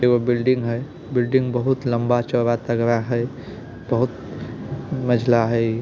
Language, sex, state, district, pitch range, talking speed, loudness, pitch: Hindi, male, Bihar, Samastipur, 120-125 Hz, 125 wpm, -21 LUFS, 120 Hz